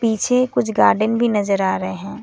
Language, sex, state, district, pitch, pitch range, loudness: Hindi, female, West Bengal, Alipurduar, 220 Hz, 195-235 Hz, -18 LUFS